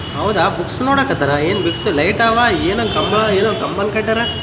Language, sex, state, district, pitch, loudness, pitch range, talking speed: Kannada, male, Karnataka, Raichur, 215 Hz, -15 LUFS, 175-230 Hz, 160 wpm